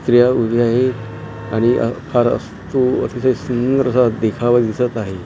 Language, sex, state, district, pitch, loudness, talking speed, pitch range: Marathi, male, Maharashtra, Gondia, 120 Hz, -17 LUFS, 150 wpm, 115-125 Hz